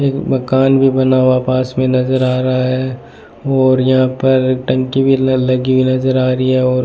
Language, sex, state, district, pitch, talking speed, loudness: Hindi, male, Rajasthan, Bikaner, 130 Hz, 185 wpm, -13 LUFS